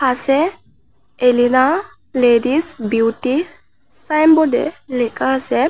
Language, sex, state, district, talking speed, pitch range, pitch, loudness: Bengali, female, Tripura, West Tripura, 85 wpm, 245-310 Hz, 265 Hz, -16 LUFS